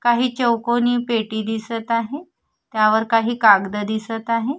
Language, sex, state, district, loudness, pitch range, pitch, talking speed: Marathi, female, Maharashtra, Gondia, -19 LUFS, 220-240 Hz, 230 Hz, 130 wpm